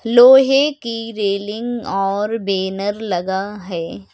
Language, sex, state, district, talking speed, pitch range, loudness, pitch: Hindi, male, Uttar Pradesh, Lucknow, 100 wpm, 195-235 Hz, -17 LUFS, 205 Hz